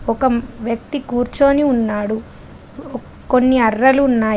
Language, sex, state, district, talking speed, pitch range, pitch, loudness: Telugu, female, Telangana, Adilabad, 95 wpm, 225-265 Hz, 245 Hz, -16 LUFS